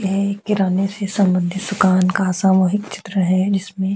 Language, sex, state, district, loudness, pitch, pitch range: Hindi, female, Uttar Pradesh, Jyotiba Phule Nagar, -18 LUFS, 195 Hz, 185-200 Hz